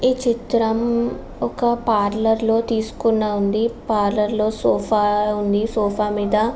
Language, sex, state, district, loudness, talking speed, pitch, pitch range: Telugu, female, Andhra Pradesh, Srikakulam, -20 LUFS, 130 wpm, 220 Hz, 210-230 Hz